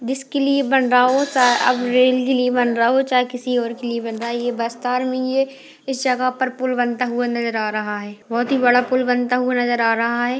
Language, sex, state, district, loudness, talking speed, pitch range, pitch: Hindi, female, Chhattisgarh, Bastar, -19 LUFS, 265 wpm, 240-255 Hz, 250 Hz